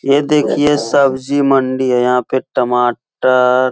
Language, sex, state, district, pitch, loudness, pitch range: Hindi, male, Uttar Pradesh, Etah, 130 Hz, -14 LUFS, 125-140 Hz